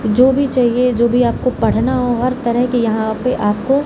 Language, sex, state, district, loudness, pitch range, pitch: Hindi, female, Bihar, Samastipur, -15 LUFS, 235-255 Hz, 245 Hz